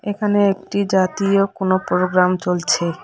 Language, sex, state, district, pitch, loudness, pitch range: Bengali, female, West Bengal, Cooch Behar, 190 Hz, -18 LUFS, 180-200 Hz